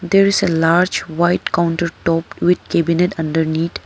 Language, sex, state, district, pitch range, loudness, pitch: English, female, Arunachal Pradesh, Papum Pare, 165-180 Hz, -17 LUFS, 170 Hz